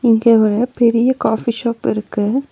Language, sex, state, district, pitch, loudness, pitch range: Tamil, female, Tamil Nadu, Nilgiris, 230 Hz, -16 LUFS, 220-240 Hz